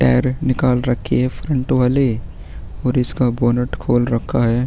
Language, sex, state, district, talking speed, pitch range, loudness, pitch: Hindi, male, Uttarakhand, Tehri Garhwal, 155 wpm, 115-130 Hz, -18 LUFS, 125 Hz